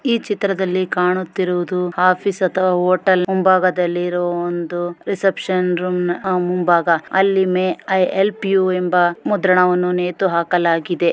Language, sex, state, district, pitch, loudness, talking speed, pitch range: Kannada, female, Karnataka, Shimoga, 180 Hz, -17 LUFS, 120 wpm, 175-190 Hz